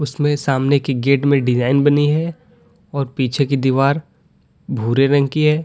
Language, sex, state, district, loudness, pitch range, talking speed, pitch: Hindi, male, Uttar Pradesh, Lalitpur, -17 LUFS, 135-145 Hz, 170 wpm, 140 Hz